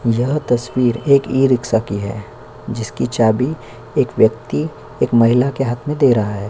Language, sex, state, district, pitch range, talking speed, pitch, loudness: Hindi, male, Chhattisgarh, Korba, 115-135 Hz, 155 wpm, 120 Hz, -17 LUFS